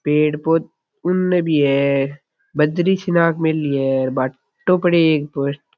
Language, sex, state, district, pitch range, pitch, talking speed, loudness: Rajasthani, male, Rajasthan, Churu, 140-170 Hz, 150 Hz, 145 wpm, -18 LUFS